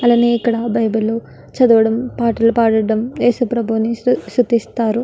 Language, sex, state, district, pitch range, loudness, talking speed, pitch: Telugu, female, Andhra Pradesh, Guntur, 225-240 Hz, -16 LUFS, 120 wpm, 230 Hz